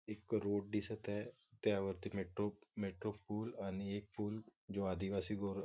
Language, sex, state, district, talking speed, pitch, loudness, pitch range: Marathi, male, Maharashtra, Nagpur, 150 wpm, 100 Hz, -43 LUFS, 100-105 Hz